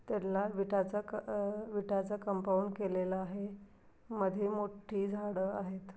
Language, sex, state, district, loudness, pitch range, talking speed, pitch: Marathi, female, Maharashtra, Aurangabad, -37 LUFS, 195-205 Hz, 120 wpm, 200 Hz